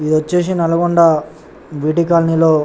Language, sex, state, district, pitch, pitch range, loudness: Telugu, male, Telangana, Nalgonda, 165 Hz, 155-170 Hz, -14 LUFS